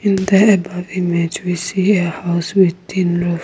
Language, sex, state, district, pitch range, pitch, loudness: English, female, Nagaland, Kohima, 175-190 Hz, 180 Hz, -16 LUFS